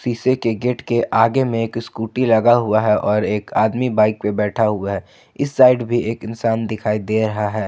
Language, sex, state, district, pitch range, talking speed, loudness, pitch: Hindi, male, Jharkhand, Ranchi, 105-120 Hz, 220 wpm, -18 LUFS, 115 Hz